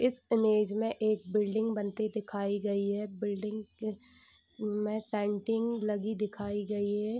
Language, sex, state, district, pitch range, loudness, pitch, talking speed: Hindi, female, Bihar, Saharsa, 205-220 Hz, -33 LUFS, 210 Hz, 135 wpm